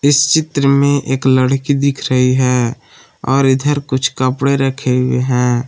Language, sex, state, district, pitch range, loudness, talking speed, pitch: Hindi, male, Jharkhand, Palamu, 130-140 Hz, -14 LUFS, 160 wpm, 135 Hz